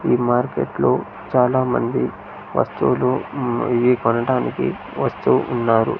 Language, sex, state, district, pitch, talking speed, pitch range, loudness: Telugu, male, Andhra Pradesh, Sri Satya Sai, 125 Hz, 90 wpm, 120-125 Hz, -20 LUFS